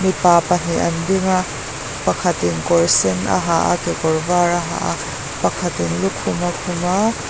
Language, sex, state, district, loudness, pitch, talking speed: Mizo, female, Mizoram, Aizawl, -18 LUFS, 175 Hz, 175 wpm